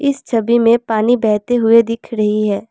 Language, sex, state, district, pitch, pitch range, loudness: Hindi, female, Assam, Kamrup Metropolitan, 230 Hz, 215-235 Hz, -14 LUFS